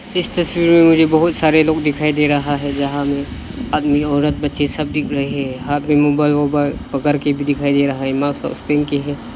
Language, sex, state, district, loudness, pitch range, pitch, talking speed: Hindi, male, Arunachal Pradesh, Lower Dibang Valley, -16 LUFS, 140-150 Hz, 145 Hz, 230 wpm